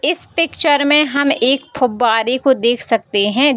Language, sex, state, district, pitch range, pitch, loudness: Hindi, female, Bihar, Gopalganj, 235-285 Hz, 265 Hz, -14 LUFS